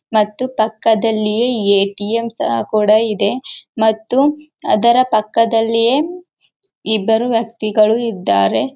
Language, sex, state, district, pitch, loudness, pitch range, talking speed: Kannada, female, Karnataka, Gulbarga, 225 Hz, -15 LUFS, 215-245 Hz, 80 wpm